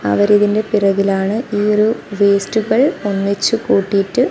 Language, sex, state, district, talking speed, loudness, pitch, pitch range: Malayalam, female, Kerala, Kasaragod, 95 wpm, -15 LUFS, 205 Hz, 200-215 Hz